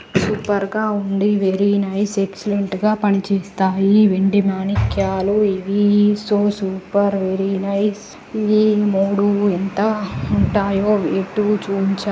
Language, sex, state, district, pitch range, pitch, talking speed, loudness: Telugu, female, Andhra Pradesh, Srikakulam, 195-205 Hz, 200 Hz, 110 wpm, -18 LUFS